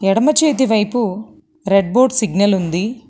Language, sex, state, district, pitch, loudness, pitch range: Telugu, female, Telangana, Hyderabad, 220 Hz, -15 LUFS, 195-255 Hz